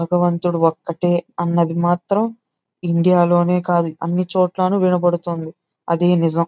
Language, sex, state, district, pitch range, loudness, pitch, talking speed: Telugu, male, Andhra Pradesh, Guntur, 170-180 Hz, -18 LUFS, 175 Hz, 110 wpm